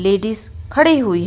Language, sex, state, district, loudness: Hindi, female, Jharkhand, Ranchi, -16 LUFS